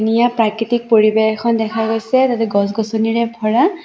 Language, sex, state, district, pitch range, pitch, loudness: Assamese, female, Assam, Sonitpur, 220-235 Hz, 225 Hz, -16 LUFS